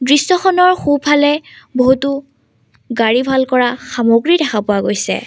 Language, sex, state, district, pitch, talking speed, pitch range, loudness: Assamese, female, Assam, Sonitpur, 265 Hz, 115 wpm, 245-295 Hz, -14 LUFS